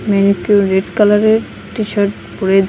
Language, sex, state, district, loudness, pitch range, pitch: Bengali, female, West Bengal, Malda, -14 LUFS, 195-215 Hz, 200 Hz